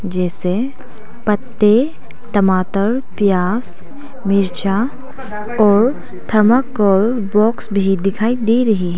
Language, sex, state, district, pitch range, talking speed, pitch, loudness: Hindi, female, Arunachal Pradesh, Papum Pare, 195-240 Hz, 85 wpm, 210 Hz, -16 LUFS